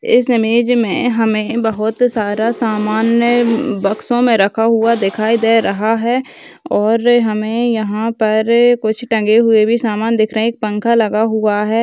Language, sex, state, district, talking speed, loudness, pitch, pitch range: Hindi, female, Rajasthan, Churu, 160 wpm, -14 LUFS, 225 Hz, 215-235 Hz